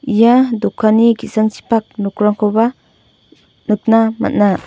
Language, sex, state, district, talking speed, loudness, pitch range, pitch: Garo, female, Meghalaya, North Garo Hills, 75 wpm, -14 LUFS, 210-230 Hz, 220 Hz